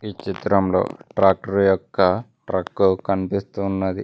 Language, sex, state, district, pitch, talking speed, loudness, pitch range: Telugu, male, Telangana, Mahabubabad, 95 Hz, 90 wpm, -21 LUFS, 95-100 Hz